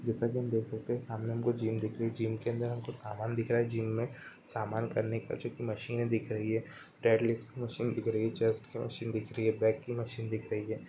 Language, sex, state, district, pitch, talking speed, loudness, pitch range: Hindi, male, Chhattisgarh, Rajnandgaon, 115 Hz, 265 wpm, -34 LUFS, 110-120 Hz